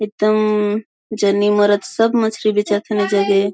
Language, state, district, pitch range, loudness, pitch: Kurukh, Chhattisgarh, Jashpur, 205-215 Hz, -17 LUFS, 210 Hz